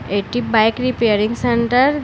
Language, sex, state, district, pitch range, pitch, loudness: Bengali, female, Tripura, West Tripura, 220-245 Hz, 235 Hz, -17 LUFS